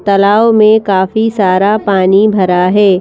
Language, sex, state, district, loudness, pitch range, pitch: Hindi, female, Madhya Pradesh, Bhopal, -9 LUFS, 190-215 Hz, 200 Hz